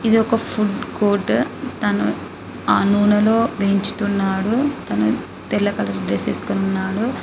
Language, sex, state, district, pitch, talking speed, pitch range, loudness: Telugu, female, Telangana, Karimnagar, 205 Hz, 115 wpm, 190-220 Hz, -19 LUFS